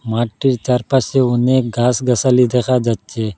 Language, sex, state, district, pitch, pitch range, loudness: Bengali, male, Assam, Hailakandi, 125 Hz, 115-130 Hz, -16 LUFS